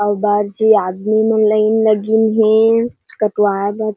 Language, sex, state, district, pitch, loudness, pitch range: Chhattisgarhi, female, Chhattisgarh, Jashpur, 215 Hz, -14 LUFS, 205-220 Hz